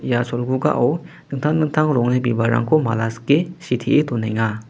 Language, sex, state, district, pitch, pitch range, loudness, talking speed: Garo, male, Meghalaya, West Garo Hills, 125 Hz, 115-150 Hz, -19 LUFS, 130 wpm